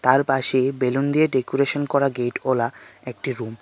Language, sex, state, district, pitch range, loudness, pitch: Bengali, male, Tripura, West Tripura, 125-140 Hz, -22 LUFS, 130 Hz